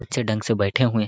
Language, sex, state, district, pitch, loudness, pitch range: Hindi, male, Chhattisgarh, Sarguja, 115 Hz, -22 LUFS, 110-125 Hz